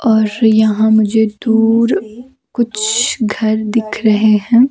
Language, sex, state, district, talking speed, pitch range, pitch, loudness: Hindi, female, Himachal Pradesh, Shimla, 115 wpm, 215-230 Hz, 220 Hz, -13 LUFS